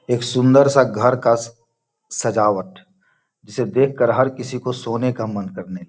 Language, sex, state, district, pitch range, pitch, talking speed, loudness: Hindi, male, Bihar, Gopalganj, 110-125 Hz, 120 Hz, 185 wpm, -18 LUFS